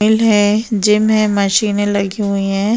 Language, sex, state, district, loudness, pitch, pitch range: Hindi, female, Bihar, Saharsa, -14 LUFS, 210 Hz, 200-215 Hz